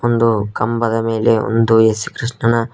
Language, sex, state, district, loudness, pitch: Kannada, male, Karnataka, Koppal, -16 LUFS, 115 Hz